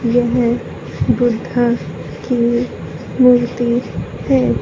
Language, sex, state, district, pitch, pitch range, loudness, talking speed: Hindi, male, Haryana, Charkhi Dadri, 240 Hz, 235-245 Hz, -16 LUFS, 65 wpm